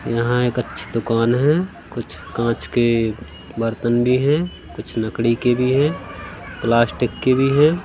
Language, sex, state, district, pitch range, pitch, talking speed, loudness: Hindi, male, Madhya Pradesh, Katni, 115-125 Hz, 120 Hz, 155 wpm, -19 LUFS